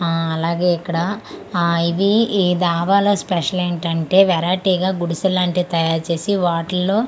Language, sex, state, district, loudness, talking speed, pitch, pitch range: Telugu, female, Andhra Pradesh, Manyam, -18 LUFS, 135 wpm, 180 Hz, 170-190 Hz